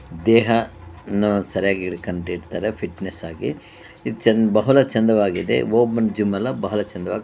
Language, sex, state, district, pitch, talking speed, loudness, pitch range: Kannada, male, Karnataka, Bellary, 105 Hz, 165 wpm, -20 LUFS, 90-110 Hz